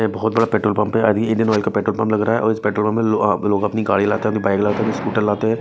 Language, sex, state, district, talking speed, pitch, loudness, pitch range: Hindi, male, Chhattisgarh, Raipur, 350 wpm, 110 Hz, -18 LUFS, 105-110 Hz